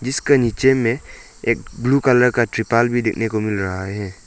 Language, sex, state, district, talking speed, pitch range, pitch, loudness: Hindi, male, Arunachal Pradesh, Lower Dibang Valley, 195 wpm, 110-125 Hz, 115 Hz, -18 LUFS